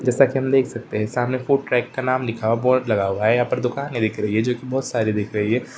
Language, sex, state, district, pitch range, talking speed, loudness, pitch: Hindi, male, Uttar Pradesh, Varanasi, 110-130 Hz, 310 wpm, -21 LUFS, 125 Hz